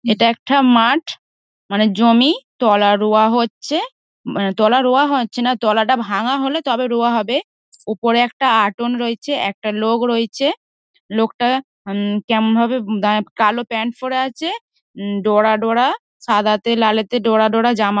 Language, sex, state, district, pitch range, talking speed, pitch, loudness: Bengali, female, West Bengal, Dakshin Dinajpur, 215-260 Hz, 135 wpm, 230 Hz, -16 LUFS